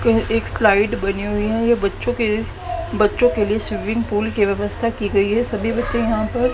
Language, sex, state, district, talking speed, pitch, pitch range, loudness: Hindi, female, Haryana, Jhajjar, 200 wpm, 220 Hz, 210-235 Hz, -19 LUFS